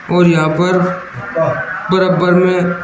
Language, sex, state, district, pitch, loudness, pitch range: Hindi, male, Uttar Pradesh, Shamli, 180 Hz, -13 LUFS, 165-180 Hz